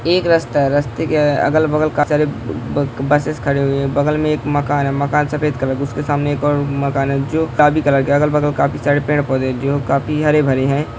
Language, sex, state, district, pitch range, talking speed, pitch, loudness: Hindi, male, Uttar Pradesh, Hamirpur, 140-150 Hz, 275 wpm, 145 Hz, -16 LUFS